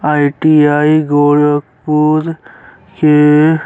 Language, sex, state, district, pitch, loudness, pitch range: Bhojpuri, male, Uttar Pradesh, Gorakhpur, 150 Hz, -11 LUFS, 145-155 Hz